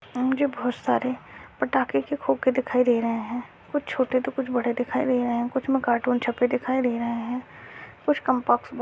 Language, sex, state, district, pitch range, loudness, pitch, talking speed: Hindi, male, Maharashtra, Dhule, 240-260 Hz, -25 LUFS, 250 Hz, 205 wpm